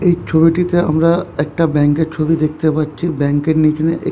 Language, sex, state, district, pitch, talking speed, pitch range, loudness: Bengali, male, West Bengal, Jhargram, 160 Hz, 205 wpm, 155-165 Hz, -15 LUFS